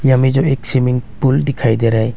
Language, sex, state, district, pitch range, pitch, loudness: Hindi, male, Arunachal Pradesh, Longding, 115-135 Hz, 130 Hz, -15 LUFS